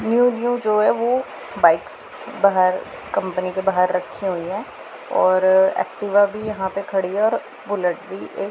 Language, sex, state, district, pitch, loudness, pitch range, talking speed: Hindi, female, Punjab, Pathankot, 200 Hz, -20 LUFS, 185-215 Hz, 170 wpm